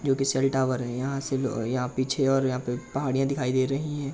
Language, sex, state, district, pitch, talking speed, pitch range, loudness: Hindi, male, Uttar Pradesh, Jalaun, 135 Hz, 245 wpm, 130-135 Hz, -27 LUFS